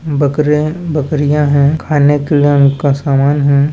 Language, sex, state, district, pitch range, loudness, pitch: Hindi, male, Chhattisgarh, Balrampur, 140-150 Hz, -12 LUFS, 145 Hz